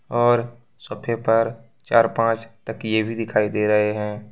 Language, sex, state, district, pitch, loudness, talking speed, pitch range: Hindi, male, Jharkhand, Ranchi, 115 Hz, -21 LUFS, 155 wpm, 110-115 Hz